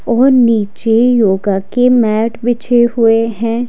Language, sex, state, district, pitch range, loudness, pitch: Hindi, female, Himachal Pradesh, Shimla, 225-245 Hz, -12 LUFS, 230 Hz